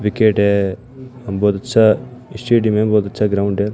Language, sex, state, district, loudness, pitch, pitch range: Hindi, male, Rajasthan, Bikaner, -16 LUFS, 105 Hz, 100-120 Hz